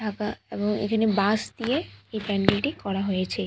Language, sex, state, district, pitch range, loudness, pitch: Bengali, female, West Bengal, Purulia, 200-220 Hz, -26 LUFS, 210 Hz